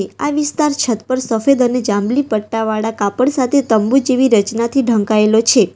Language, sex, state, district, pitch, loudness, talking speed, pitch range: Gujarati, female, Gujarat, Valsad, 230 Hz, -15 LUFS, 155 wpm, 215-265 Hz